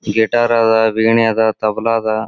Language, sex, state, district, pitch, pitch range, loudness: Kannada, male, Karnataka, Gulbarga, 110 Hz, 110-115 Hz, -14 LUFS